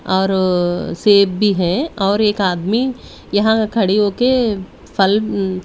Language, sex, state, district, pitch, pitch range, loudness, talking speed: Hindi, female, Delhi, New Delhi, 200 Hz, 190-215 Hz, -16 LUFS, 115 wpm